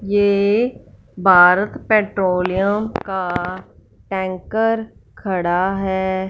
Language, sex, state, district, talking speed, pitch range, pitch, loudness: Hindi, female, Punjab, Fazilka, 65 wpm, 185-205 Hz, 190 Hz, -18 LUFS